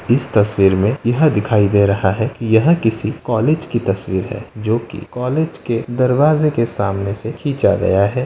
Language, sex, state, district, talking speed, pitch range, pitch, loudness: Hindi, male, Uttar Pradesh, Gorakhpur, 190 wpm, 100-130 Hz, 115 Hz, -17 LUFS